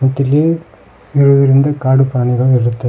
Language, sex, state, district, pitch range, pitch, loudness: Kannada, male, Karnataka, Koppal, 125-140 Hz, 135 Hz, -12 LUFS